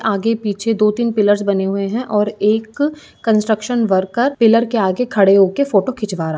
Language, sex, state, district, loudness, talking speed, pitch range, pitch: Hindi, female, Uttar Pradesh, Jyotiba Phule Nagar, -16 LUFS, 205 wpm, 200-230 Hz, 215 Hz